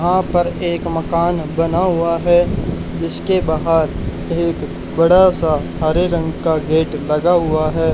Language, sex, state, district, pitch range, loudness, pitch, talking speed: Hindi, male, Haryana, Charkhi Dadri, 155-175 Hz, -17 LUFS, 165 Hz, 150 wpm